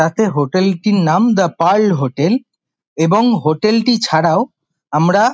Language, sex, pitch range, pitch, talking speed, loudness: Bengali, male, 160-220 Hz, 190 Hz, 145 wpm, -14 LUFS